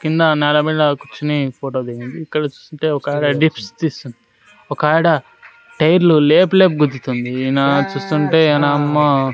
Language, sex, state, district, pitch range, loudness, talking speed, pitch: Telugu, male, Andhra Pradesh, Sri Satya Sai, 135-160 Hz, -16 LUFS, 135 wpm, 150 Hz